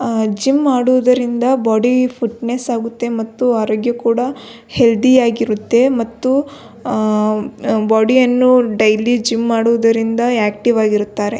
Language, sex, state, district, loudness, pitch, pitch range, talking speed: Kannada, female, Karnataka, Belgaum, -15 LUFS, 235 Hz, 220-250 Hz, 105 wpm